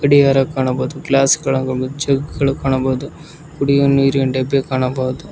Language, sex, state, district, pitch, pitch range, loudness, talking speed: Kannada, male, Karnataka, Koppal, 135 Hz, 130-140 Hz, -16 LUFS, 125 wpm